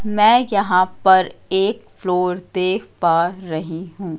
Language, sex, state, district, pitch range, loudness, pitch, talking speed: Hindi, female, Madhya Pradesh, Katni, 175-200 Hz, -18 LUFS, 185 Hz, 130 wpm